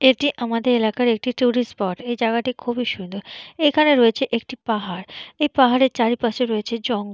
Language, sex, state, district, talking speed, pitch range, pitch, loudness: Bengali, female, West Bengal, Purulia, 160 wpm, 225-255 Hz, 240 Hz, -20 LUFS